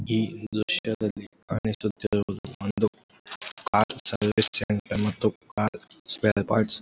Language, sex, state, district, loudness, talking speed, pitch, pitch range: Kannada, male, Karnataka, Gulbarga, -27 LUFS, 105 wpm, 105 Hz, 105-110 Hz